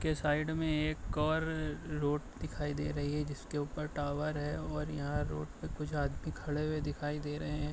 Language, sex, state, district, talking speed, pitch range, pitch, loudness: Hindi, male, Bihar, Bhagalpur, 200 wpm, 145-155 Hz, 150 Hz, -36 LUFS